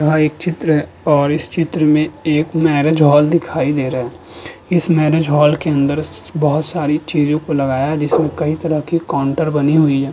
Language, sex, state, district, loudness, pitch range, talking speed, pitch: Hindi, male, Uttar Pradesh, Budaun, -15 LUFS, 145-160 Hz, 185 wpm, 155 Hz